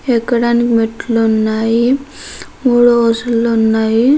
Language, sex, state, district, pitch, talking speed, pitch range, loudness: Telugu, female, Andhra Pradesh, Krishna, 230 Hz, 85 wpm, 225-240 Hz, -13 LUFS